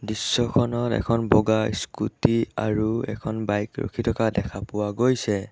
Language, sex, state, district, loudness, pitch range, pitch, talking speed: Assamese, male, Assam, Sonitpur, -24 LUFS, 105-120 Hz, 110 Hz, 130 wpm